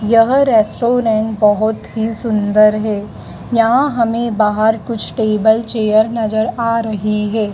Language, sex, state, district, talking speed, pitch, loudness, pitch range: Hindi, female, Madhya Pradesh, Dhar, 125 wpm, 220 Hz, -15 LUFS, 215-230 Hz